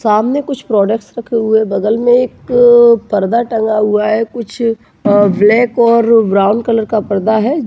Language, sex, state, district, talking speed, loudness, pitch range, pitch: Hindi, male, Bihar, Bhagalpur, 150 wpm, -12 LUFS, 210-235 Hz, 225 Hz